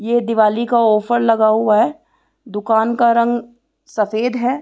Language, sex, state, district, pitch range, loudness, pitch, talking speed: Hindi, female, Bihar, Saran, 220-240 Hz, -16 LUFS, 235 Hz, 155 wpm